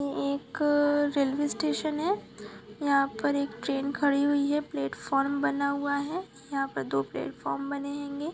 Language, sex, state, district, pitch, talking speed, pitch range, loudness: Hindi, female, West Bengal, Kolkata, 280 Hz, 145 wpm, 275-290 Hz, -29 LUFS